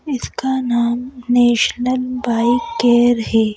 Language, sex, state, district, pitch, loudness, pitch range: Hindi, female, Madhya Pradesh, Bhopal, 240 Hz, -16 LUFS, 235-255 Hz